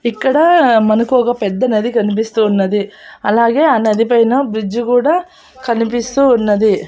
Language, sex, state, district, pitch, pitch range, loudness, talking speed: Telugu, female, Andhra Pradesh, Annamaya, 235 Hz, 215-255 Hz, -13 LUFS, 130 wpm